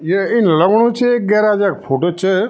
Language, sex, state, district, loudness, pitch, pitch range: Garhwali, male, Uttarakhand, Tehri Garhwal, -14 LUFS, 200 Hz, 185-225 Hz